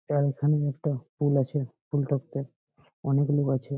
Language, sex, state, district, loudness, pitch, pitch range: Bengali, male, West Bengal, Malda, -28 LUFS, 140 Hz, 140-145 Hz